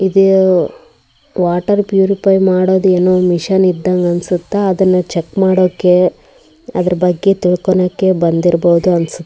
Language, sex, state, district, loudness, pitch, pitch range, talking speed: Kannada, male, Karnataka, Raichur, -13 LUFS, 185 Hz, 180-190 Hz, 105 wpm